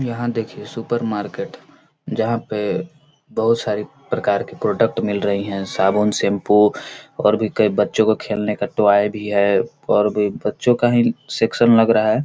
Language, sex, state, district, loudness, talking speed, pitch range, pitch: Hindi, male, Bihar, Gaya, -19 LUFS, 180 wpm, 105-115 Hz, 110 Hz